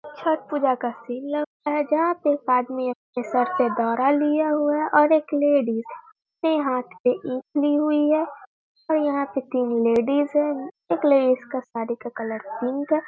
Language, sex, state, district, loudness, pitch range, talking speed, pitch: Hindi, female, Bihar, Muzaffarpur, -23 LUFS, 250-300 Hz, 190 wpm, 285 Hz